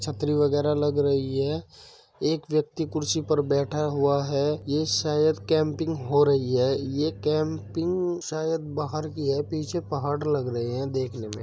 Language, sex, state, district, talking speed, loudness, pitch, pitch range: Hindi, male, Uttar Pradesh, Muzaffarnagar, 170 wpm, -26 LUFS, 150 Hz, 140-155 Hz